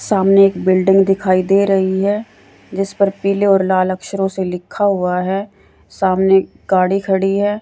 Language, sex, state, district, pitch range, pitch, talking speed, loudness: Hindi, female, Haryana, Rohtak, 190-195 Hz, 195 Hz, 165 wpm, -15 LUFS